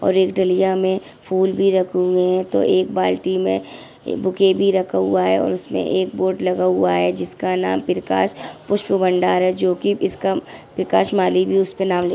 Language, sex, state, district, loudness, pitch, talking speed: Hindi, female, Chhattisgarh, Bilaspur, -19 LUFS, 185 Hz, 190 wpm